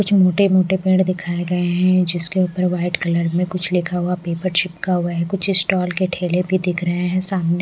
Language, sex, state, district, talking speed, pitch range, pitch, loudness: Hindi, female, Odisha, Malkangiri, 220 wpm, 175-185 Hz, 180 Hz, -18 LUFS